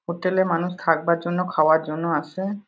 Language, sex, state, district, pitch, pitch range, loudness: Bengali, female, West Bengal, Paschim Medinipur, 170 Hz, 160-185 Hz, -22 LUFS